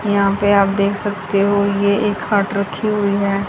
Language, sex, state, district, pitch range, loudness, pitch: Hindi, female, Haryana, Charkhi Dadri, 200-205 Hz, -17 LUFS, 200 Hz